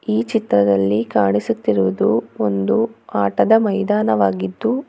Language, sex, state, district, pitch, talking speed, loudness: Kannada, female, Karnataka, Bangalore, 105 Hz, 75 wpm, -18 LUFS